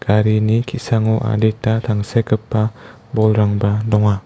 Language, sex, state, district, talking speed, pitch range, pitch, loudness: Garo, male, Meghalaya, West Garo Hills, 85 wpm, 105-115 Hz, 110 Hz, -17 LUFS